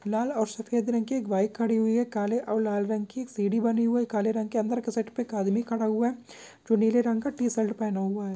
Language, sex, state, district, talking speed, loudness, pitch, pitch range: Hindi, male, Maharashtra, Chandrapur, 260 wpm, -27 LUFS, 225 Hz, 215-235 Hz